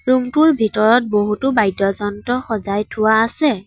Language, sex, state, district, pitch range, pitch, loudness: Assamese, female, Assam, Sonitpur, 205-250 Hz, 220 Hz, -16 LUFS